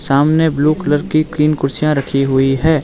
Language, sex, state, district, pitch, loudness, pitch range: Hindi, male, Arunachal Pradesh, Lower Dibang Valley, 150 Hz, -14 LUFS, 135-155 Hz